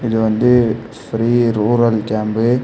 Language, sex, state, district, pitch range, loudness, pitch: Tamil, male, Tamil Nadu, Kanyakumari, 110-120 Hz, -15 LUFS, 115 Hz